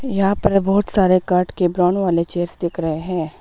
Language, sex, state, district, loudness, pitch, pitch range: Hindi, female, Arunachal Pradesh, Papum Pare, -18 LUFS, 180 Hz, 175-195 Hz